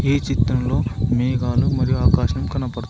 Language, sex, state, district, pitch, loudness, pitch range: Telugu, male, Telangana, Adilabad, 125 Hz, -20 LUFS, 120-130 Hz